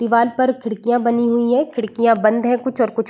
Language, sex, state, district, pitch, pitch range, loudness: Hindi, female, Bihar, Saran, 235 Hz, 230-245 Hz, -17 LUFS